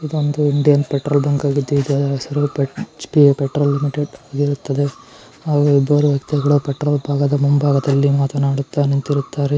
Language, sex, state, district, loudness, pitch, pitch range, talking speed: Kannada, male, Karnataka, Chamarajanagar, -17 LUFS, 145 Hz, 140-145 Hz, 125 wpm